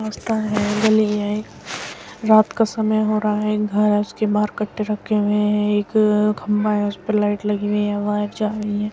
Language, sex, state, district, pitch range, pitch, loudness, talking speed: Hindi, female, Uttar Pradesh, Muzaffarnagar, 210-215 Hz, 210 Hz, -20 LUFS, 200 wpm